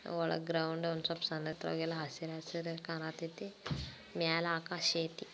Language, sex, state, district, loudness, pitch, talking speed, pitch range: Kannada, female, Karnataka, Belgaum, -38 LUFS, 165 Hz, 135 wpm, 160-170 Hz